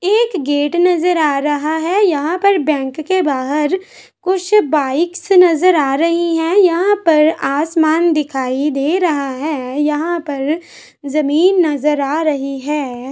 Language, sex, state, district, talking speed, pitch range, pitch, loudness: Hindi, female, Chhattisgarh, Raigarh, 140 wpm, 290-355 Hz, 315 Hz, -15 LUFS